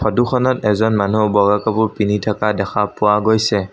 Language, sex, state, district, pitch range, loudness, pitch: Assamese, male, Assam, Sonitpur, 105-110 Hz, -16 LUFS, 105 Hz